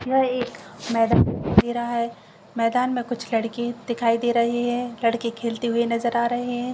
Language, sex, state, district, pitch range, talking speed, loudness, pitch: Hindi, female, Jharkhand, Jamtara, 230-245 Hz, 205 wpm, -23 LUFS, 235 Hz